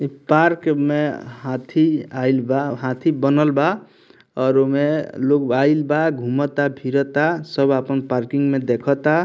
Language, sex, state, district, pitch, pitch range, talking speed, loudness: Bhojpuri, male, Bihar, Muzaffarpur, 140 Hz, 130-150 Hz, 135 wpm, -19 LUFS